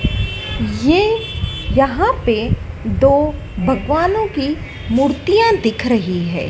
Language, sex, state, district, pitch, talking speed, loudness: Hindi, female, Madhya Pradesh, Dhar, 280 Hz, 90 wpm, -17 LUFS